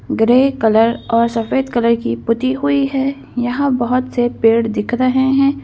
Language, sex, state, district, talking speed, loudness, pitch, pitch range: Hindi, female, Madhya Pradesh, Bhopal, 170 wpm, -15 LUFS, 245 Hz, 230-270 Hz